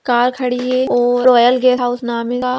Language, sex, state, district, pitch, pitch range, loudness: Magahi, female, Bihar, Gaya, 245 Hz, 245-255 Hz, -15 LUFS